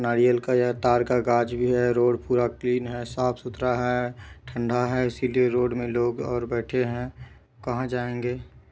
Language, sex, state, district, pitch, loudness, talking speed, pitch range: Maithili, male, Bihar, Supaul, 120 Hz, -25 LUFS, 170 wpm, 120-125 Hz